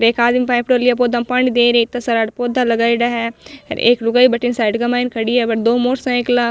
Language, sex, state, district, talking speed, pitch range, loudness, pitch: Marwari, female, Rajasthan, Nagaur, 260 wpm, 235-250 Hz, -15 LUFS, 240 Hz